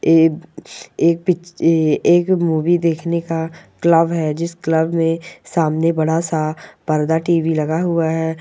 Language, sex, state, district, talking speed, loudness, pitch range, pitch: Hindi, female, Rajasthan, Churu, 135 wpm, -17 LUFS, 160-170 Hz, 165 Hz